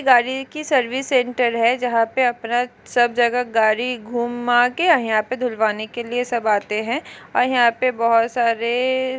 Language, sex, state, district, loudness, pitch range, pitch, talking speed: Hindi, female, Maharashtra, Aurangabad, -19 LUFS, 230-255 Hz, 245 Hz, 170 wpm